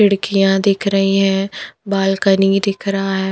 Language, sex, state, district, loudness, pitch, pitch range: Hindi, female, Punjab, Pathankot, -16 LUFS, 195 Hz, 195-200 Hz